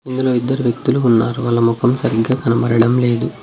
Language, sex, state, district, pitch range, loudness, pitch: Telugu, male, Telangana, Mahabubabad, 115-130 Hz, -16 LUFS, 120 Hz